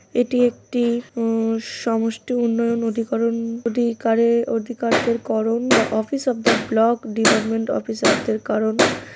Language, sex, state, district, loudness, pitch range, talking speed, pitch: Bengali, female, West Bengal, Dakshin Dinajpur, -20 LUFS, 225-240 Hz, 120 wpm, 230 Hz